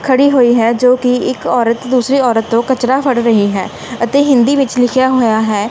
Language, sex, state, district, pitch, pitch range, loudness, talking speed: Punjabi, female, Punjab, Kapurthala, 245 Hz, 230-260 Hz, -12 LUFS, 220 wpm